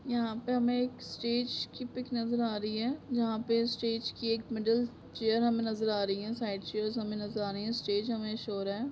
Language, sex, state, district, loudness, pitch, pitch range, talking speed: Hindi, female, Chhattisgarh, Raigarh, -33 LUFS, 225 Hz, 215-240 Hz, 240 wpm